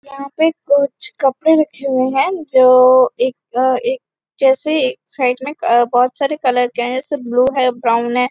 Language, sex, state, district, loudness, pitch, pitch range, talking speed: Hindi, female, Chhattisgarh, Bastar, -15 LUFS, 265 Hz, 250-285 Hz, 175 wpm